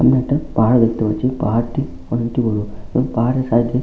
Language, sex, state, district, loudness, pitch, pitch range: Bengali, male, West Bengal, Malda, -18 LUFS, 120 Hz, 110-130 Hz